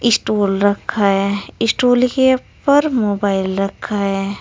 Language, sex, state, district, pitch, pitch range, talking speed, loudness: Hindi, female, Uttar Pradesh, Saharanpur, 205 Hz, 200-250 Hz, 120 wpm, -16 LUFS